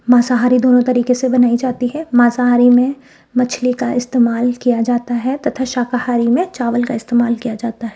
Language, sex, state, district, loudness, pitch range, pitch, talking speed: Hindi, female, Rajasthan, Jaipur, -15 LUFS, 240-250 Hz, 245 Hz, 180 wpm